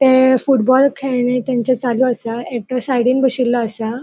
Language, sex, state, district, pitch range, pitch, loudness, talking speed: Konkani, female, Goa, North and South Goa, 240-260 Hz, 250 Hz, -16 LUFS, 150 wpm